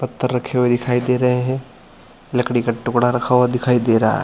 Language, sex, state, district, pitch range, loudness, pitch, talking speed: Hindi, male, Chhattisgarh, Bilaspur, 120-125 Hz, -18 LUFS, 125 Hz, 225 wpm